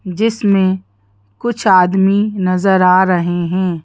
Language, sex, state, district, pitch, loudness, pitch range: Hindi, female, Madhya Pradesh, Bhopal, 185 Hz, -14 LUFS, 180-195 Hz